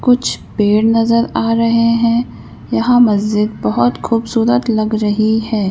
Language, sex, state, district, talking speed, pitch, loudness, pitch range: Hindi, female, Madhya Pradesh, Bhopal, 135 wpm, 225 Hz, -14 LUFS, 210-230 Hz